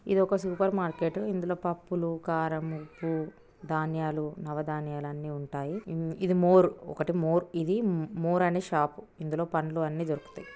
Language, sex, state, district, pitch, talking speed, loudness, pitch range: Telugu, female, Andhra Pradesh, Chittoor, 165 Hz, 135 wpm, -30 LUFS, 155-180 Hz